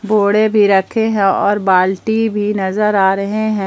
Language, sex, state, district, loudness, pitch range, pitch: Hindi, female, Jharkhand, Palamu, -14 LUFS, 195-215 Hz, 205 Hz